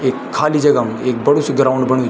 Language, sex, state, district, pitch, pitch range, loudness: Garhwali, male, Uttarakhand, Tehri Garhwal, 135 Hz, 130-145 Hz, -15 LUFS